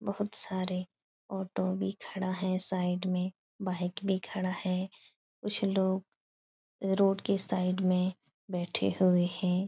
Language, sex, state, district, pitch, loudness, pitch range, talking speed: Hindi, female, Bihar, Supaul, 185 Hz, -32 LUFS, 180-195 Hz, 130 wpm